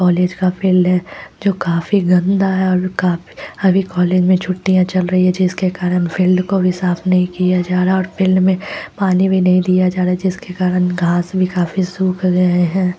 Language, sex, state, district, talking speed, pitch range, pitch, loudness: Hindi, female, Bihar, Lakhisarai, 190 wpm, 180-185 Hz, 185 Hz, -15 LUFS